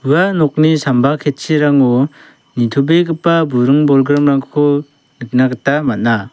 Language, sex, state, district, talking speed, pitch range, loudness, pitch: Garo, male, Meghalaya, South Garo Hills, 95 wpm, 130-150 Hz, -13 LUFS, 145 Hz